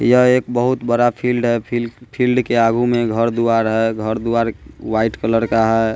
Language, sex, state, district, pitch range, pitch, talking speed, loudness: Hindi, male, Bihar, West Champaran, 115-120 Hz, 115 Hz, 200 wpm, -17 LUFS